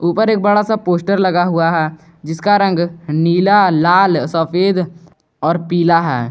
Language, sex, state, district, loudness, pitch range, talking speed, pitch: Hindi, male, Jharkhand, Garhwa, -14 LUFS, 165-190 Hz, 150 wpm, 170 Hz